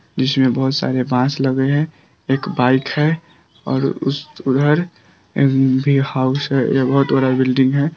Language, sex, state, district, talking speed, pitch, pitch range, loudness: Hindi, male, Bihar, Vaishali, 160 wpm, 135 Hz, 130-145 Hz, -17 LUFS